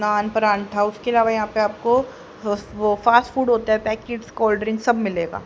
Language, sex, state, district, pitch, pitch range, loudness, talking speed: Hindi, male, Haryana, Rohtak, 215 Hz, 210-235 Hz, -20 LUFS, 195 wpm